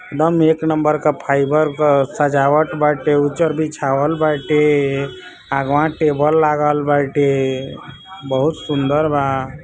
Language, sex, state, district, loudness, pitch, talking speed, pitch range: Bhojpuri, male, Uttar Pradesh, Ghazipur, -16 LUFS, 150 Hz, 75 wpm, 140-155 Hz